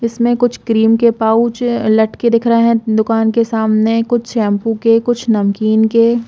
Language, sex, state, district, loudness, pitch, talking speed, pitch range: Hindi, female, Chhattisgarh, Bastar, -13 LUFS, 230 Hz, 180 wpm, 220-235 Hz